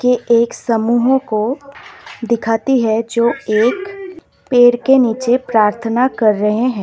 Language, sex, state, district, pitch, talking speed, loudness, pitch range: Hindi, female, Assam, Kamrup Metropolitan, 235 Hz, 130 wpm, -15 LUFS, 225-255 Hz